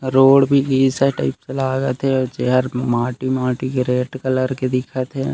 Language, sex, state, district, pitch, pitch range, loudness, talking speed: Chhattisgarhi, male, Chhattisgarh, Raigarh, 130 Hz, 125-135 Hz, -18 LUFS, 180 wpm